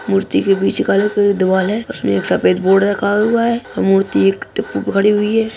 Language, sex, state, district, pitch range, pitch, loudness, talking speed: Hindi, female, Bihar, Purnia, 190-210 Hz, 200 Hz, -15 LUFS, 205 wpm